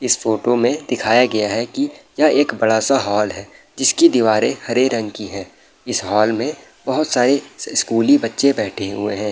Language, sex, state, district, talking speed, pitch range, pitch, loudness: Hindi, male, Bihar, Saharsa, 185 wpm, 105-135 Hz, 120 Hz, -17 LUFS